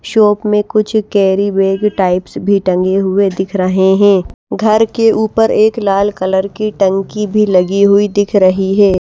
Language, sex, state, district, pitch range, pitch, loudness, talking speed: Hindi, female, Bihar, Patna, 190-210 Hz, 200 Hz, -12 LUFS, 165 wpm